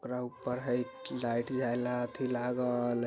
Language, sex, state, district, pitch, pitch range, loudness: Bajjika, male, Bihar, Vaishali, 125 Hz, 120-125 Hz, -34 LUFS